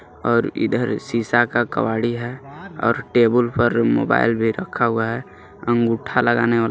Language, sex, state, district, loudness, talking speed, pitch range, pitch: Hindi, male, Jharkhand, Garhwa, -19 LUFS, 150 wpm, 115-120 Hz, 120 Hz